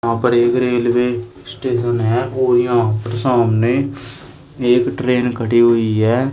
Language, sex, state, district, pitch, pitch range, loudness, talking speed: Hindi, male, Uttar Pradesh, Shamli, 120 Hz, 120-125 Hz, -16 LUFS, 140 wpm